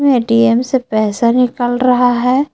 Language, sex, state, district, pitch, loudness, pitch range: Hindi, female, Jharkhand, Palamu, 245 Hz, -13 LUFS, 235-255 Hz